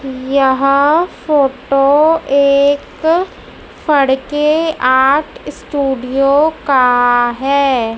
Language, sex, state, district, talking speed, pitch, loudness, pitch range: Hindi, male, Madhya Pradesh, Dhar, 45 wpm, 275 Hz, -13 LUFS, 265-295 Hz